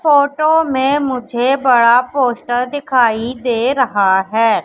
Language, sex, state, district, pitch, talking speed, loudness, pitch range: Hindi, female, Madhya Pradesh, Katni, 250 Hz, 115 wpm, -14 LUFS, 235-275 Hz